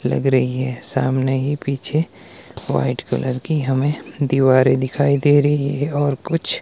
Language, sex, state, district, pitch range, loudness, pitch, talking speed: Hindi, male, Himachal Pradesh, Shimla, 130-145 Hz, -19 LUFS, 140 Hz, 155 wpm